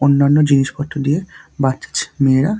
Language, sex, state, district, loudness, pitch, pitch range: Bengali, male, West Bengal, Dakshin Dinajpur, -16 LUFS, 140 Hz, 135-150 Hz